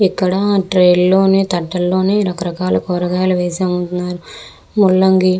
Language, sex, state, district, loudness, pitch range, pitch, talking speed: Telugu, female, Andhra Pradesh, Visakhapatnam, -15 LUFS, 180-190 Hz, 185 Hz, 100 wpm